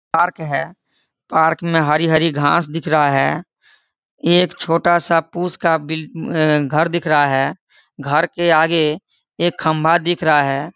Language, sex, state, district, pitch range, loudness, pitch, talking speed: Hindi, male, Jharkhand, Sahebganj, 150-170 Hz, -16 LUFS, 160 Hz, 150 wpm